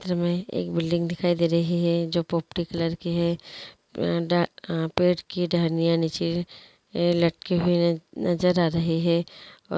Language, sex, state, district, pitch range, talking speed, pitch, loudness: Hindi, female, Andhra Pradesh, Guntur, 170-175 Hz, 160 wpm, 170 Hz, -25 LUFS